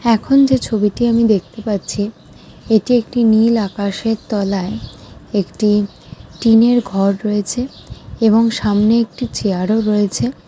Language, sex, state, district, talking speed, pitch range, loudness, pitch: Bengali, female, West Bengal, Dakshin Dinajpur, 125 wpm, 200-230 Hz, -16 LUFS, 215 Hz